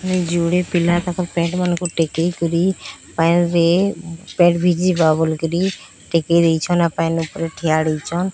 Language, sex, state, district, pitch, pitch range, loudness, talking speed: Odia, female, Odisha, Sambalpur, 170 Hz, 165-180 Hz, -18 LUFS, 135 wpm